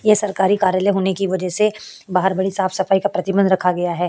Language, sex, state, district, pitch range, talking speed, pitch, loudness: Hindi, female, Uttar Pradesh, Hamirpur, 185-195 Hz, 220 wpm, 190 Hz, -18 LUFS